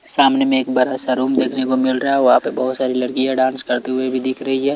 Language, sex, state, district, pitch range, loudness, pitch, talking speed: Hindi, male, Chhattisgarh, Raipur, 130-135 Hz, -17 LUFS, 130 Hz, 290 wpm